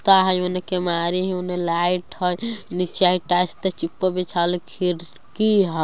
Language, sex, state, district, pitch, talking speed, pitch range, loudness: Bajjika, female, Bihar, Vaishali, 180 Hz, 125 wpm, 175-185 Hz, -22 LUFS